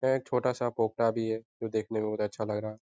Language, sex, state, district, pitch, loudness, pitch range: Hindi, male, Bihar, Jahanabad, 115 Hz, -31 LUFS, 110-120 Hz